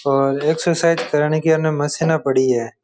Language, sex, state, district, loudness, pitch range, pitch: Rajasthani, male, Rajasthan, Churu, -18 LUFS, 135-160 Hz, 150 Hz